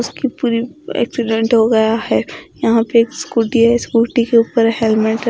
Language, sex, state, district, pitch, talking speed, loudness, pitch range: Hindi, female, Odisha, Khordha, 230 Hz, 180 wpm, -15 LUFS, 225-240 Hz